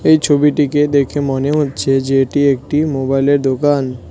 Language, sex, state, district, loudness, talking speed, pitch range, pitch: Bengali, male, West Bengal, Cooch Behar, -14 LUFS, 145 wpm, 135-145 Hz, 140 Hz